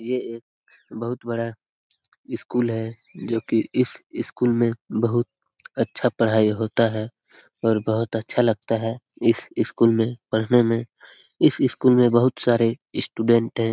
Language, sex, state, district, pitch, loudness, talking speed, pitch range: Hindi, male, Bihar, Lakhisarai, 115 Hz, -22 LUFS, 145 wpm, 115-120 Hz